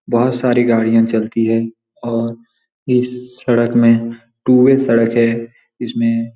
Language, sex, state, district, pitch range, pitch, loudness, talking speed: Hindi, male, Bihar, Saran, 115-120 Hz, 115 Hz, -15 LUFS, 140 wpm